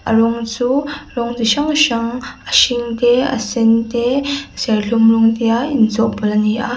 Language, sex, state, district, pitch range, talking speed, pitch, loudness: Mizo, female, Mizoram, Aizawl, 225-250 Hz, 175 wpm, 235 Hz, -15 LUFS